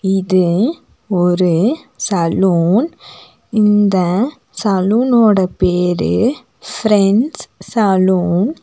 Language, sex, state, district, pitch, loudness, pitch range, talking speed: Tamil, female, Tamil Nadu, Nilgiris, 195 Hz, -14 LUFS, 180-225 Hz, 70 wpm